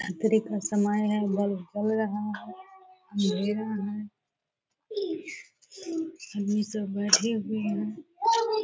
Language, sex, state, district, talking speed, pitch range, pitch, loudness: Hindi, female, Bihar, Purnia, 105 wpm, 205-335 Hz, 215 Hz, -28 LUFS